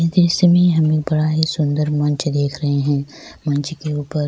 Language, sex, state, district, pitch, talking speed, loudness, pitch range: Urdu, female, Bihar, Saharsa, 150 Hz, 180 wpm, -18 LUFS, 145-160 Hz